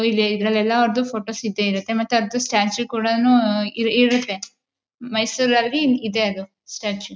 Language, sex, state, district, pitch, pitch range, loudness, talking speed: Kannada, female, Karnataka, Mysore, 225 Hz, 210-240 Hz, -20 LUFS, 115 wpm